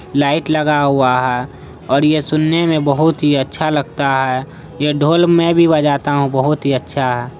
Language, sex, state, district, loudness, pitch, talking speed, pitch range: Hindi, female, Bihar, Araria, -15 LUFS, 145 Hz, 185 wpm, 135-155 Hz